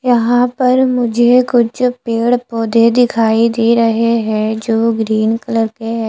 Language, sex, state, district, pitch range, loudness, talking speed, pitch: Hindi, female, Maharashtra, Mumbai Suburban, 225-245 Hz, -13 LUFS, 150 wpm, 230 Hz